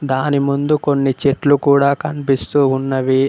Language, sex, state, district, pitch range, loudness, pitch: Telugu, male, Telangana, Mahabubabad, 135-145 Hz, -16 LUFS, 140 Hz